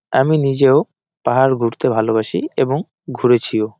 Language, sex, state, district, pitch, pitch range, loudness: Bengali, male, West Bengal, Jalpaiguri, 125 Hz, 110-130 Hz, -16 LUFS